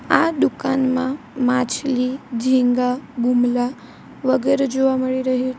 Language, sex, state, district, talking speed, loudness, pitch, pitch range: Gujarati, female, Gujarat, Valsad, 120 wpm, -20 LUFS, 255 Hz, 250-265 Hz